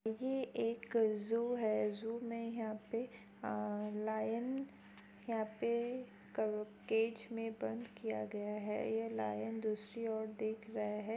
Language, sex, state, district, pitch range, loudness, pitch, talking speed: Hindi, male, Bihar, Jamui, 210-230 Hz, -40 LUFS, 220 Hz, 130 wpm